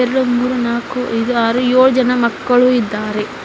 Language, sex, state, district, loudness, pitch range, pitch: Kannada, female, Karnataka, Bidar, -15 LUFS, 235-250 Hz, 245 Hz